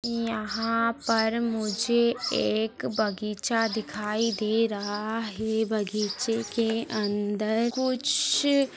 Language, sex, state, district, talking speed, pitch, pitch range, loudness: Hindi, female, Rajasthan, Nagaur, 95 wpm, 220 Hz, 210-230 Hz, -27 LUFS